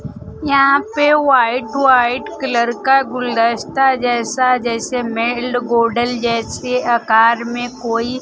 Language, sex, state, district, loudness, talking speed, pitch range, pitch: Hindi, female, Bihar, Kaimur, -15 LUFS, 110 wpm, 235-260 Hz, 245 Hz